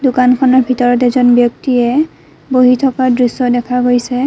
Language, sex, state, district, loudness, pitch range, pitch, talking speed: Assamese, female, Assam, Kamrup Metropolitan, -12 LUFS, 245-260 Hz, 250 Hz, 125 wpm